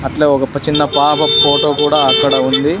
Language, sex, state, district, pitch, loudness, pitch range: Telugu, male, Andhra Pradesh, Sri Satya Sai, 145 Hz, -11 LUFS, 140-150 Hz